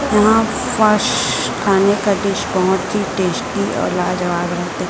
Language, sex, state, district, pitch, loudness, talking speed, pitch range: Hindi, female, Chhattisgarh, Raipur, 200 Hz, -16 LUFS, 120 wpm, 185-210 Hz